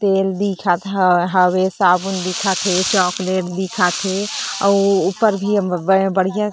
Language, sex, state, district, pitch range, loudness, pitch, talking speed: Chhattisgarhi, female, Chhattisgarh, Korba, 185-200 Hz, -17 LUFS, 190 Hz, 155 wpm